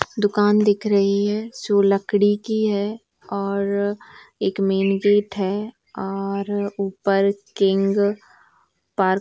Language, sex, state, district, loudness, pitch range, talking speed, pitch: Hindi, female, Chhattisgarh, Bilaspur, -21 LUFS, 195-205 Hz, 110 wpm, 200 Hz